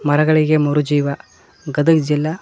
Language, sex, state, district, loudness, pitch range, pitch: Kannada, male, Karnataka, Koppal, -16 LUFS, 145-155 Hz, 150 Hz